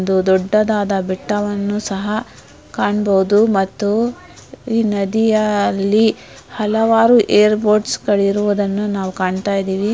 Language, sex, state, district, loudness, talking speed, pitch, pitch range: Kannada, female, Karnataka, Dharwad, -16 LUFS, 95 wpm, 205 Hz, 195-215 Hz